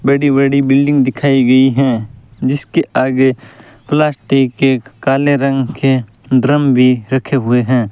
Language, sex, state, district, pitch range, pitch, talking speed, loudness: Hindi, male, Rajasthan, Bikaner, 125-140 Hz, 130 Hz, 135 wpm, -13 LUFS